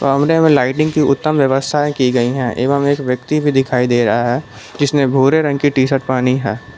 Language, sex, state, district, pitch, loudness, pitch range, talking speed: Hindi, male, Jharkhand, Palamu, 135 Hz, -15 LUFS, 125-145 Hz, 210 wpm